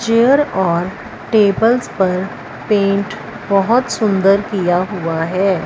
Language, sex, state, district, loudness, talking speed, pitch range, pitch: Hindi, female, Punjab, Fazilka, -15 LUFS, 105 wpm, 190-220 Hz, 200 Hz